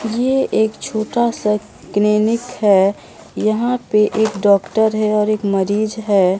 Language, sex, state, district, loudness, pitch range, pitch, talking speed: Hindi, female, Bihar, Katihar, -17 LUFS, 205-220 Hz, 215 Hz, 150 wpm